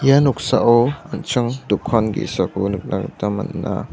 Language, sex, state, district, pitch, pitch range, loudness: Garo, male, Meghalaya, West Garo Hills, 120 Hz, 105-135 Hz, -19 LUFS